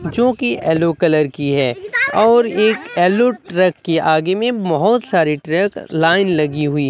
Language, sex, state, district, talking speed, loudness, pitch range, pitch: Hindi, male, Bihar, Katihar, 175 wpm, -16 LUFS, 160-220 Hz, 175 Hz